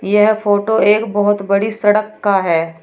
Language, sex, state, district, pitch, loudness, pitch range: Hindi, female, Uttar Pradesh, Shamli, 205 Hz, -14 LUFS, 200-215 Hz